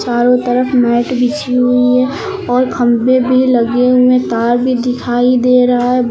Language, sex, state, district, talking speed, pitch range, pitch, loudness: Hindi, female, Uttar Pradesh, Lucknow, 165 wpm, 245-255 Hz, 250 Hz, -12 LUFS